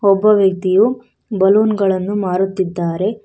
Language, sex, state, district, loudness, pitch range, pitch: Kannada, female, Karnataka, Bangalore, -15 LUFS, 190-210 Hz, 195 Hz